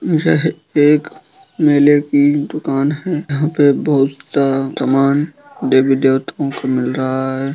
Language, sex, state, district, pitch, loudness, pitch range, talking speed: Hindi, male, Bihar, East Champaran, 145 Hz, -15 LUFS, 135-150 Hz, 135 wpm